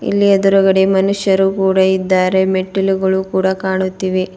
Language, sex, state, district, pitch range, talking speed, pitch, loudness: Kannada, female, Karnataka, Bidar, 190-195 Hz, 110 wpm, 190 Hz, -14 LUFS